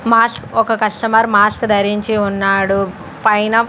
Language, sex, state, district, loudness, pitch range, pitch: Telugu, female, Andhra Pradesh, Sri Satya Sai, -15 LUFS, 205-225 Hz, 215 Hz